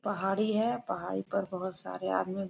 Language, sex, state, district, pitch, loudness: Hindi, female, Jharkhand, Sahebganj, 190 Hz, -32 LUFS